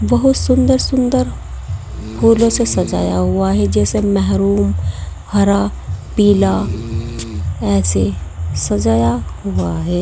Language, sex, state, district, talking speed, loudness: Hindi, female, Uttar Pradesh, Saharanpur, 95 wpm, -15 LUFS